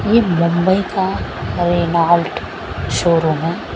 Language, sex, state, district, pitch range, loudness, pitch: Hindi, female, Maharashtra, Mumbai Suburban, 165-185 Hz, -17 LUFS, 170 Hz